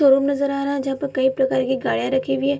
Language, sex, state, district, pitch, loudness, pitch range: Hindi, female, Bihar, Bhagalpur, 270 Hz, -21 LUFS, 265-280 Hz